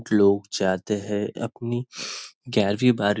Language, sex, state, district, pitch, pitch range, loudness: Hindi, male, Maharashtra, Nagpur, 105 Hz, 100-120 Hz, -24 LUFS